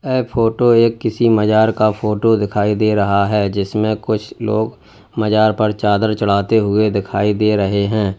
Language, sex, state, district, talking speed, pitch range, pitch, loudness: Hindi, male, Uttar Pradesh, Lalitpur, 170 wpm, 105-110 Hz, 105 Hz, -16 LUFS